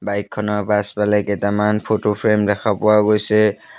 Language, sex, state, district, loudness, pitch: Assamese, male, Assam, Sonitpur, -18 LUFS, 105 Hz